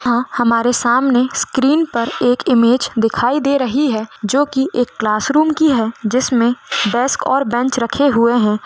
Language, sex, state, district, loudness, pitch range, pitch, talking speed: Hindi, female, Goa, North and South Goa, -15 LUFS, 235-275 Hz, 245 Hz, 165 wpm